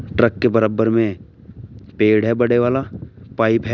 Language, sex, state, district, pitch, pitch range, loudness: Hindi, male, Uttar Pradesh, Shamli, 115 Hz, 110-120 Hz, -17 LUFS